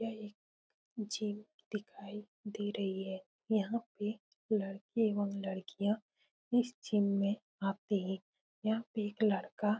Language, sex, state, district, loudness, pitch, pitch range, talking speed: Hindi, female, Bihar, Saran, -37 LUFS, 210 Hz, 200-215 Hz, 130 wpm